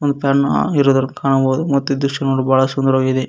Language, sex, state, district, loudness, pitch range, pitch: Kannada, male, Karnataka, Koppal, -16 LUFS, 130-140 Hz, 135 Hz